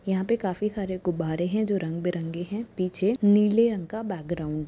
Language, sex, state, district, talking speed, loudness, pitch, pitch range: Hindi, male, Uttar Pradesh, Jyotiba Phule Nagar, 205 wpm, -26 LUFS, 190 Hz, 175-210 Hz